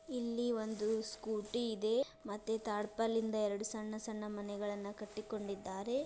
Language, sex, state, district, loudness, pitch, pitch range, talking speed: Kannada, female, Karnataka, Dharwad, -39 LUFS, 215 Hz, 210-225 Hz, 120 wpm